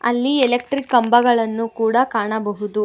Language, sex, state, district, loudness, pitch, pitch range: Kannada, female, Karnataka, Bangalore, -18 LUFS, 235 Hz, 225-245 Hz